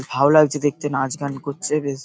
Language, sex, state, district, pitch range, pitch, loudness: Bengali, male, West Bengal, Paschim Medinipur, 135-150 Hz, 140 Hz, -20 LUFS